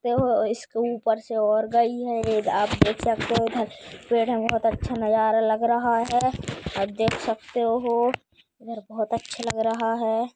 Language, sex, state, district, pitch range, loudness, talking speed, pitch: Hindi, female, Maharashtra, Pune, 225-235 Hz, -24 LUFS, 185 wpm, 230 Hz